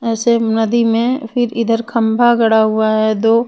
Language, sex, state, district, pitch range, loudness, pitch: Hindi, female, Bihar, Patna, 225-235 Hz, -14 LUFS, 230 Hz